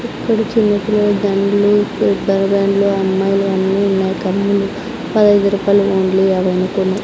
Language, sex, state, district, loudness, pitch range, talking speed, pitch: Telugu, female, Andhra Pradesh, Sri Satya Sai, -15 LUFS, 190-205 Hz, 100 wpm, 200 Hz